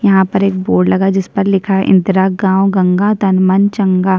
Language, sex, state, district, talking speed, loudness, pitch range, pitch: Hindi, female, Chhattisgarh, Kabirdham, 245 wpm, -12 LUFS, 185-195 Hz, 190 Hz